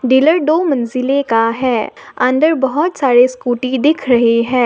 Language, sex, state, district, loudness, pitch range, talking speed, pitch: Hindi, female, Assam, Sonitpur, -14 LUFS, 245-290 Hz, 155 wpm, 260 Hz